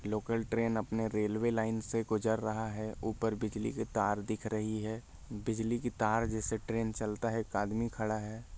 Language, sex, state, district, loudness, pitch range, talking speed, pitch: Hindi, male, Chhattisgarh, Sarguja, -35 LUFS, 110-115 Hz, 190 wpm, 110 Hz